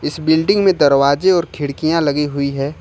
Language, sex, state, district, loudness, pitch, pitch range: Hindi, male, Jharkhand, Ranchi, -15 LUFS, 150 Hz, 140-165 Hz